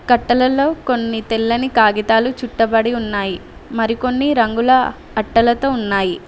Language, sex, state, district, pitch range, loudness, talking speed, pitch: Telugu, female, Telangana, Mahabubabad, 225-250 Hz, -16 LUFS, 95 wpm, 230 Hz